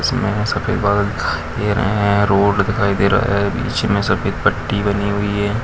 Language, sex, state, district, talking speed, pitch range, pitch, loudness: Hindi, male, Bihar, Araria, 200 wpm, 100-105 Hz, 100 Hz, -17 LUFS